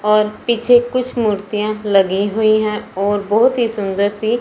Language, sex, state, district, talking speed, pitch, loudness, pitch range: Hindi, male, Punjab, Fazilka, 175 wpm, 215 Hz, -16 LUFS, 205-235 Hz